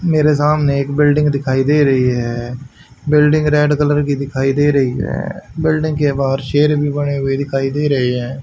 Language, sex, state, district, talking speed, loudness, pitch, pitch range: Hindi, male, Haryana, Rohtak, 190 wpm, -15 LUFS, 140 Hz, 135-150 Hz